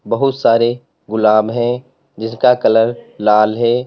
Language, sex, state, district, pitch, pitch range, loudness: Hindi, male, Uttar Pradesh, Lalitpur, 115 Hz, 110-125 Hz, -14 LUFS